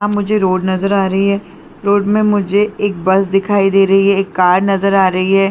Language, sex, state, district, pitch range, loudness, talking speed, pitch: Hindi, female, Chhattisgarh, Bilaspur, 190-205 Hz, -13 LUFS, 240 wpm, 195 Hz